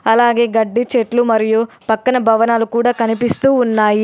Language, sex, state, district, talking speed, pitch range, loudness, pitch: Telugu, female, Telangana, Adilabad, 135 wpm, 225-240 Hz, -14 LUFS, 230 Hz